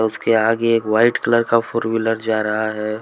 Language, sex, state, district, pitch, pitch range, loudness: Hindi, male, Jharkhand, Deoghar, 115 Hz, 110-115 Hz, -18 LUFS